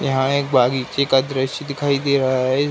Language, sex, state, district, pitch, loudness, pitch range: Hindi, male, Uttar Pradesh, Ghazipur, 135 Hz, -19 LUFS, 130-140 Hz